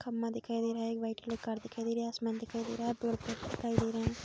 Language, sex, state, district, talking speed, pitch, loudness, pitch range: Hindi, female, Bihar, Saharsa, 325 wpm, 230 Hz, -36 LUFS, 220-230 Hz